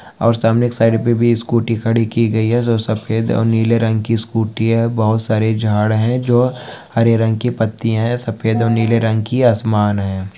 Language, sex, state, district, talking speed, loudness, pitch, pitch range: Hindi, male, Maharashtra, Solapur, 210 wpm, -16 LUFS, 115 Hz, 110-115 Hz